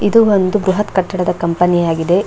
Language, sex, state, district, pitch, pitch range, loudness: Kannada, female, Karnataka, Bangalore, 190 Hz, 175-205 Hz, -14 LUFS